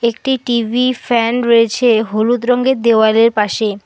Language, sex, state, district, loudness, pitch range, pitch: Bengali, female, West Bengal, Alipurduar, -13 LUFS, 225-245 Hz, 235 Hz